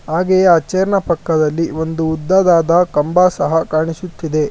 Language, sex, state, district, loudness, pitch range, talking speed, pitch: Kannada, male, Karnataka, Bangalore, -15 LUFS, 160-180 Hz, 120 wpm, 165 Hz